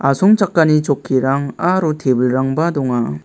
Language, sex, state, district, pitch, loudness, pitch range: Garo, male, Meghalaya, West Garo Hills, 140 Hz, -16 LUFS, 130-165 Hz